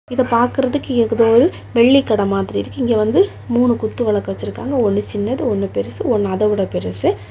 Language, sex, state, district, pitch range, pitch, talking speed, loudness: Tamil, female, Tamil Nadu, Kanyakumari, 200-245 Hz, 225 Hz, 170 wpm, -17 LUFS